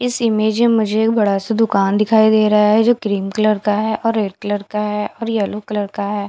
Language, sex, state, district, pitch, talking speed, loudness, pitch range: Hindi, female, Bihar, Katihar, 215 Hz, 250 wpm, -16 LUFS, 205-220 Hz